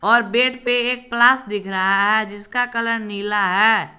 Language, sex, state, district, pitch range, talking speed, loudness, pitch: Hindi, male, Jharkhand, Garhwa, 205-245 Hz, 180 wpm, -18 LUFS, 230 Hz